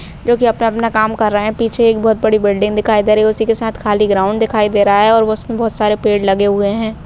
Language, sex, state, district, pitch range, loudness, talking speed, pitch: Bhojpuri, female, Bihar, Saran, 205-225 Hz, -13 LUFS, 290 wpm, 215 Hz